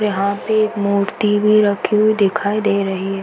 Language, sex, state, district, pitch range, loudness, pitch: Hindi, female, Uttar Pradesh, Varanasi, 200-215 Hz, -16 LUFS, 205 Hz